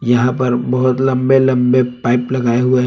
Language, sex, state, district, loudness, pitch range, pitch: Hindi, male, Jharkhand, Palamu, -14 LUFS, 125-130 Hz, 125 Hz